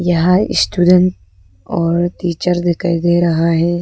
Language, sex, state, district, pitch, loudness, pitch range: Hindi, female, Arunachal Pradesh, Lower Dibang Valley, 175 Hz, -14 LUFS, 170-180 Hz